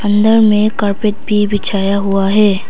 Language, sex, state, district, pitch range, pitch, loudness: Hindi, female, Arunachal Pradesh, Papum Pare, 200-210 Hz, 205 Hz, -13 LUFS